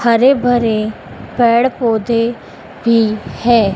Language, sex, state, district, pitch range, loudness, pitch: Hindi, female, Madhya Pradesh, Dhar, 220-240 Hz, -14 LUFS, 230 Hz